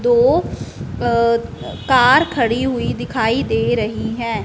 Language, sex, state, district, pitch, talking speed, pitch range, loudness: Hindi, female, Punjab, Fazilka, 235 Hz, 120 wpm, 225-260 Hz, -17 LUFS